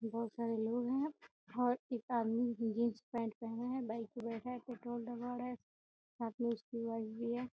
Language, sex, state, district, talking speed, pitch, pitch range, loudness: Hindi, female, Bihar, Gopalganj, 215 wpm, 235 Hz, 230-245 Hz, -40 LUFS